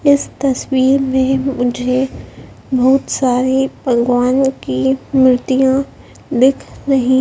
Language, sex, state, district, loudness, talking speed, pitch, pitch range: Hindi, male, Madhya Pradesh, Dhar, -15 LUFS, 90 wpm, 260 Hz, 250-270 Hz